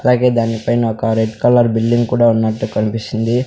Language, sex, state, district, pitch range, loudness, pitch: Telugu, male, Andhra Pradesh, Sri Satya Sai, 110-120 Hz, -15 LUFS, 115 Hz